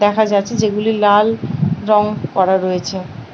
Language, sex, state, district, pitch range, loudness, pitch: Bengali, female, West Bengal, Paschim Medinipur, 180-210 Hz, -16 LUFS, 205 Hz